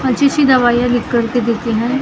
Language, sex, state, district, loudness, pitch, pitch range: Hindi, female, Maharashtra, Gondia, -14 LUFS, 245 Hz, 235-260 Hz